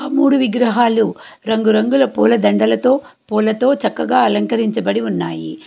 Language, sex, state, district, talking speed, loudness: Telugu, female, Telangana, Hyderabad, 85 wpm, -15 LUFS